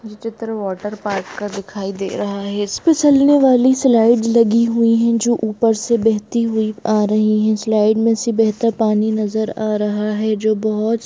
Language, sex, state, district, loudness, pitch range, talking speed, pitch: Hindi, female, Jharkhand, Jamtara, -16 LUFS, 210-230 Hz, 195 wpm, 220 Hz